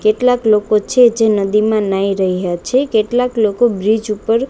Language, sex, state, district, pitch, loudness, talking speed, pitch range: Gujarati, female, Gujarat, Gandhinagar, 215 Hz, -14 LUFS, 160 wpm, 205-240 Hz